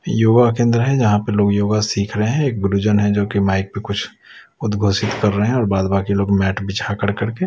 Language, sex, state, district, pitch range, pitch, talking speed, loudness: Hindi, male, Chhattisgarh, Raipur, 100-110 Hz, 105 Hz, 240 wpm, -17 LUFS